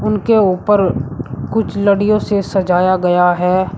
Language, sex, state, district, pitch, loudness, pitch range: Hindi, male, Uttar Pradesh, Shamli, 190 Hz, -14 LUFS, 180-205 Hz